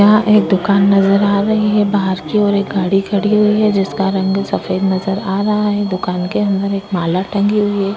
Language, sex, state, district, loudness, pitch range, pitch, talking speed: Hindi, female, Uttar Pradesh, Hamirpur, -15 LUFS, 195-210 Hz, 200 Hz, 225 wpm